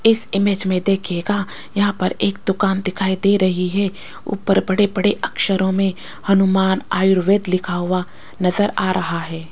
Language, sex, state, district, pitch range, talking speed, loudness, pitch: Hindi, female, Rajasthan, Jaipur, 185-200 Hz, 160 wpm, -18 LUFS, 190 Hz